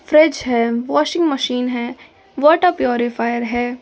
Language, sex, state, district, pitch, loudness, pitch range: Hindi, female, Delhi, New Delhi, 250 Hz, -17 LUFS, 240-305 Hz